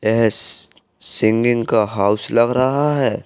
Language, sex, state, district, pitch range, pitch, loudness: Hindi, male, Uttar Pradesh, Jalaun, 110-125 Hz, 115 Hz, -16 LUFS